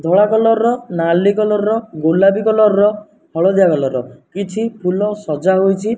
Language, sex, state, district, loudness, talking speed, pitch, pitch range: Odia, male, Odisha, Nuapada, -15 LUFS, 150 wpm, 200 Hz, 180-215 Hz